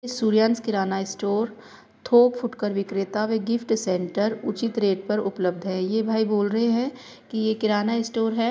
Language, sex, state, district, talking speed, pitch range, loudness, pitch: Hindi, female, Uttar Pradesh, Hamirpur, 170 wpm, 200-230 Hz, -24 LUFS, 220 Hz